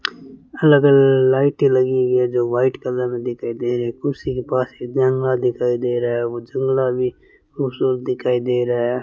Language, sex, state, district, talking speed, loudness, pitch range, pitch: Hindi, male, Rajasthan, Bikaner, 195 wpm, -19 LUFS, 125-135 Hz, 125 Hz